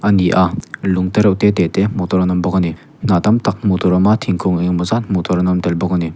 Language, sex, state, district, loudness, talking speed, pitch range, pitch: Mizo, male, Mizoram, Aizawl, -15 LUFS, 310 wpm, 90-100 Hz, 90 Hz